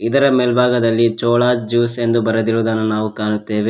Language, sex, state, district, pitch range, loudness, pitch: Kannada, male, Karnataka, Koppal, 110-120 Hz, -16 LUFS, 115 Hz